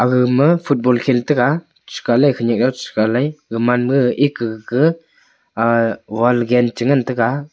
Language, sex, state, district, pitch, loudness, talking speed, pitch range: Wancho, male, Arunachal Pradesh, Longding, 125 Hz, -16 LUFS, 160 wpm, 120-140 Hz